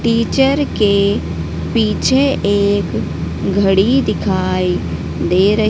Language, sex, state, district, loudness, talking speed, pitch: Hindi, female, Madhya Pradesh, Dhar, -15 LUFS, 85 wpm, 200 Hz